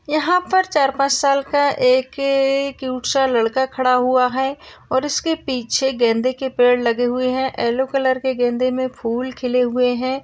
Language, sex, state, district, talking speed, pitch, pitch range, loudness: Hindi, female, Maharashtra, Sindhudurg, 185 wpm, 260 Hz, 250-275 Hz, -18 LUFS